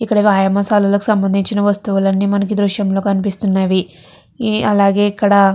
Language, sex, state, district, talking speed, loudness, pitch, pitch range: Telugu, female, Andhra Pradesh, Chittoor, 110 wpm, -15 LUFS, 200 Hz, 195-205 Hz